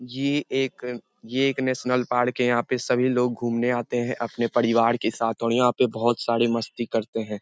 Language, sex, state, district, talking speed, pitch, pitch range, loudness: Hindi, male, Bihar, Lakhisarai, 210 wpm, 120 Hz, 115-125 Hz, -24 LUFS